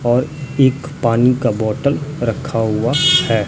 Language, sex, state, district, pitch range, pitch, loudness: Hindi, male, Bihar, Katihar, 115-140 Hz, 125 Hz, -16 LUFS